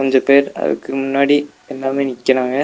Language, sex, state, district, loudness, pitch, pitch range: Tamil, male, Tamil Nadu, Nilgiris, -16 LUFS, 135 Hz, 135-140 Hz